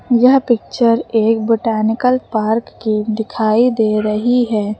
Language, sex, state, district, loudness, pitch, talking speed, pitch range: Hindi, female, Uttar Pradesh, Lucknow, -15 LUFS, 225 Hz, 125 wpm, 215-240 Hz